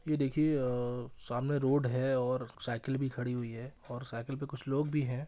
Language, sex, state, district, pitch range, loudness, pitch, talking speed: Hindi, male, Bihar, East Champaran, 125-140 Hz, -34 LUFS, 130 Hz, 205 wpm